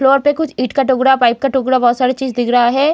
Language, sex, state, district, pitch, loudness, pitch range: Hindi, female, Bihar, Gaya, 260 Hz, -14 LUFS, 245-275 Hz